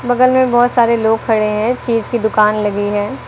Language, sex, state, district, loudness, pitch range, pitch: Hindi, female, Uttar Pradesh, Lucknow, -14 LUFS, 215-245 Hz, 230 Hz